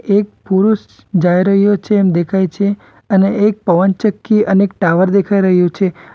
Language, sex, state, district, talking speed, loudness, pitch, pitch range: Gujarati, male, Gujarat, Valsad, 165 wpm, -13 LUFS, 195 Hz, 185-205 Hz